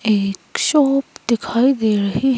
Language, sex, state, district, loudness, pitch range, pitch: Hindi, female, Himachal Pradesh, Shimla, -18 LUFS, 210-270 Hz, 235 Hz